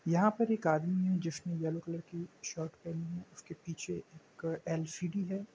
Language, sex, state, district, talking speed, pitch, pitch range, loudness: Hindi, male, Bihar, Gopalganj, 185 wpm, 170 Hz, 165-185 Hz, -36 LUFS